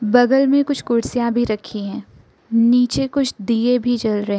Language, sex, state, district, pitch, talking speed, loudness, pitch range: Hindi, female, Arunachal Pradesh, Lower Dibang Valley, 240 Hz, 180 wpm, -18 LUFS, 225-250 Hz